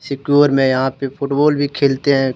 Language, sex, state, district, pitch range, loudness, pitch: Hindi, male, Jharkhand, Deoghar, 135-145 Hz, -16 LUFS, 140 Hz